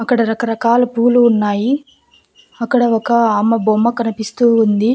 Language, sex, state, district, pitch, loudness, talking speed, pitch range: Telugu, female, Andhra Pradesh, Annamaya, 230 Hz, -14 LUFS, 120 wpm, 220-240 Hz